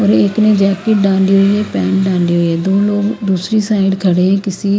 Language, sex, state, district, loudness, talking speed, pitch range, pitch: Hindi, female, Haryana, Rohtak, -13 LUFS, 240 wpm, 190-205 Hz, 195 Hz